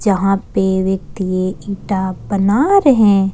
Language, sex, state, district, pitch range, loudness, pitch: Hindi, female, Jharkhand, Ranchi, 190-205 Hz, -15 LUFS, 195 Hz